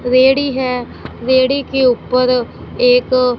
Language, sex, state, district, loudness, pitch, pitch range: Hindi, female, Punjab, Fazilka, -14 LUFS, 255 Hz, 250-260 Hz